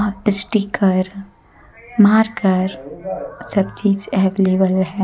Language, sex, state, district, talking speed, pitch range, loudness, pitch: Hindi, female, Jharkhand, Deoghar, 70 wpm, 190-210 Hz, -17 LUFS, 195 Hz